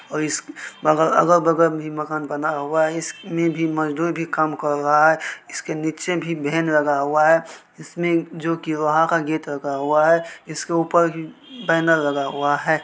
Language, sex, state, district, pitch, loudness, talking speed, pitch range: Maithili, male, Bihar, Supaul, 160 Hz, -20 LUFS, 175 wpm, 150-165 Hz